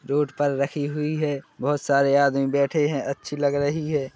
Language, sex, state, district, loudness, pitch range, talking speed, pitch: Hindi, male, Chhattisgarh, Rajnandgaon, -23 LUFS, 140-150 Hz, 175 wpm, 145 Hz